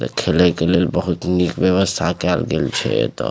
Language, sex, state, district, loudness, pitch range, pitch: Maithili, male, Bihar, Supaul, -18 LUFS, 85-90 Hz, 90 Hz